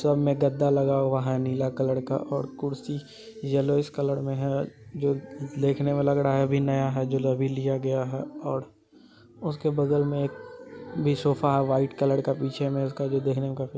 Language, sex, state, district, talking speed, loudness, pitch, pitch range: Hindi, male, Bihar, Supaul, 210 wpm, -26 LUFS, 140 Hz, 135-145 Hz